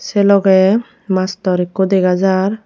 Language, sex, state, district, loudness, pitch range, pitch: Chakma, female, Tripura, Unakoti, -14 LUFS, 185-200 Hz, 190 Hz